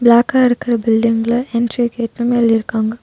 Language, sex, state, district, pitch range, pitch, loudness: Tamil, female, Tamil Nadu, Nilgiris, 225-240 Hz, 235 Hz, -15 LUFS